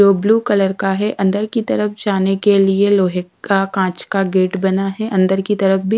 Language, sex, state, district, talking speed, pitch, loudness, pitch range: Hindi, female, Odisha, Sambalpur, 220 wpm, 195 Hz, -16 LUFS, 190-205 Hz